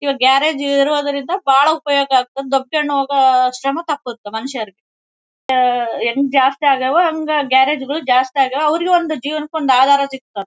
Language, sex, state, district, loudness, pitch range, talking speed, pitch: Kannada, female, Karnataka, Bellary, -16 LUFS, 260-300 Hz, 155 wpm, 275 Hz